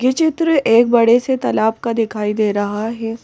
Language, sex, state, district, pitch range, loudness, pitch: Hindi, female, Madhya Pradesh, Bhopal, 220-255 Hz, -16 LUFS, 230 Hz